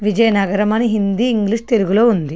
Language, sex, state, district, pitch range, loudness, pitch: Telugu, female, Andhra Pradesh, Srikakulam, 200-230 Hz, -16 LUFS, 215 Hz